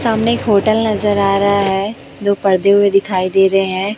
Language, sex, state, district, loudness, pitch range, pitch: Hindi, female, Chhattisgarh, Raipur, -14 LUFS, 195-210 Hz, 200 Hz